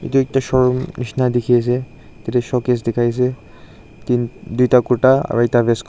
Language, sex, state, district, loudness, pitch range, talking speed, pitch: Nagamese, male, Nagaland, Dimapur, -17 LUFS, 120-130 Hz, 175 wpm, 125 Hz